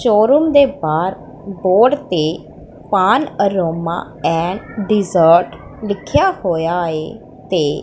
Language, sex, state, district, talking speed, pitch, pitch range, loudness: Punjabi, female, Punjab, Pathankot, 105 wpm, 185 Hz, 165-215 Hz, -16 LUFS